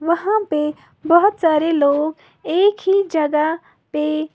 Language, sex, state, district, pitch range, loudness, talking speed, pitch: Hindi, female, Uttar Pradesh, Lalitpur, 305-380 Hz, -18 LUFS, 125 wpm, 320 Hz